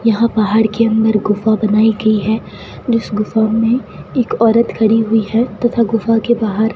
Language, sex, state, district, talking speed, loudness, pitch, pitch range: Hindi, female, Rajasthan, Bikaner, 185 wpm, -14 LUFS, 220 Hz, 215-230 Hz